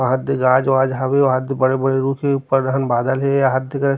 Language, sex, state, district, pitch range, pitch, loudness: Chhattisgarhi, male, Chhattisgarh, Rajnandgaon, 130-135 Hz, 135 Hz, -17 LUFS